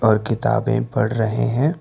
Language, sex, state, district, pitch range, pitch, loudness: Hindi, male, Karnataka, Bangalore, 110-135 Hz, 115 Hz, -20 LUFS